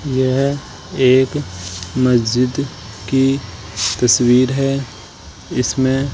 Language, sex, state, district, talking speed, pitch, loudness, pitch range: Hindi, male, Rajasthan, Jaipur, 80 wpm, 130 Hz, -17 LUFS, 110-135 Hz